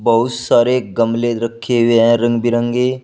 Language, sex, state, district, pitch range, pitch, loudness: Hindi, male, Uttar Pradesh, Shamli, 115-120 Hz, 120 Hz, -15 LUFS